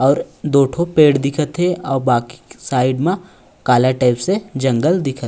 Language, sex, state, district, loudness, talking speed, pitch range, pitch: Chhattisgarhi, male, Chhattisgarh, Raigarh, -17 LUFS, 195 wpm, 130-170 Hz, 140 Hz